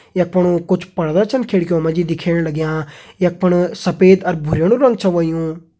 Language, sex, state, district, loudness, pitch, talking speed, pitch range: Hindi, male, Uttarakhand, Uttarkashi, -16 LUFS, 175 Hz, 185 wpm, 165-185 Hz